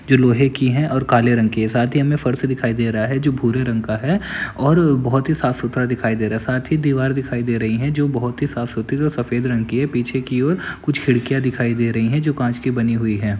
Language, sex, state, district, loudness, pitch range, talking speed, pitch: Hindi, male, Uttar Pradesh, Ghazipur, -19 LUFS, 120-135 Hz, 275 wpm, 125 Hz